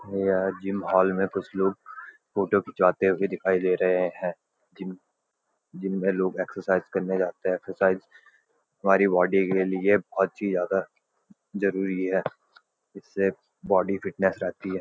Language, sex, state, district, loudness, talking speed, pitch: Hindi, male, Uttarakhand, Uttarkashi, -25 LUFS, 150 wpm, 95 Hz